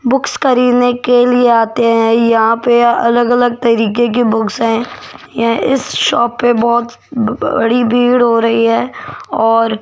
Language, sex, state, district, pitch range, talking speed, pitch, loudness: Hindi, female, Rajasthan, Jaipur, 230-245 Hz, 145 wpm, 240 Hz, -12 LUFS